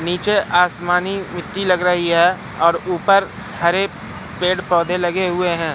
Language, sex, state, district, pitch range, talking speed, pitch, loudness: Hindi, male, Madhya Pradesh, Katni, 175-185 Hz, 145 wpm, 180 Hz, -17 LUFS